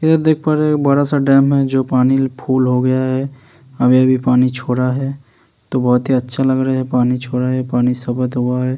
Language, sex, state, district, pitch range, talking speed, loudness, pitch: Hindi, male, Uttar Pradesh, Hamirpur, 125-135 Hz, 190 wpm, -15 LUFS, 130 Hz